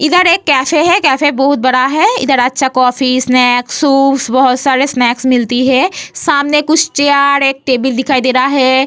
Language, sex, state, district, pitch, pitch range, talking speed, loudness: Hindi, female, Bihar, Vaishali, 270 Hz, 255-285 Hz, 185 wpm, -11 LUFS